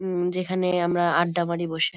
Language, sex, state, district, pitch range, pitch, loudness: Bengali, female, West Bengal, Kolkata, 170-180 Hz, 175 Hz, -24 LUFS